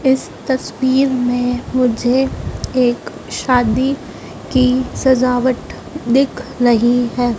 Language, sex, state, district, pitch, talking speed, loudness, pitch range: Hindi, male, Madhya Pradesh, Dhar, 255 Hz, 90 wpm, -16 LUFS, 245-260 Hz